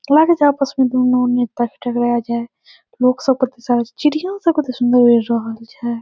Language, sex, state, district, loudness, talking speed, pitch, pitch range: Maithili, female, Bihar, Saharsa, -16 LUFS, 130 wpm, 245 Hz, 240-275 Hz